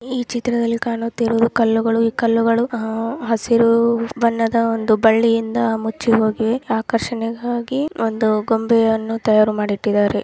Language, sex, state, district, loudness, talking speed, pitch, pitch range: Kannada, female, Karnataka, Raichur, -18 LUFS, 100 wpm, 230 Hz, 225-235 Hz